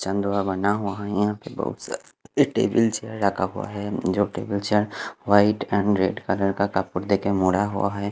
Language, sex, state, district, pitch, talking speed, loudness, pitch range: Hindi, male, Punjab, Fazilka, 100 Hz, 185 wpm, -24 LUFS, 100-105 Hz